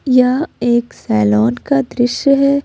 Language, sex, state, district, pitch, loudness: Hindi, female, Jharkhand, Ranchi, 240 Hz, -15 LUFS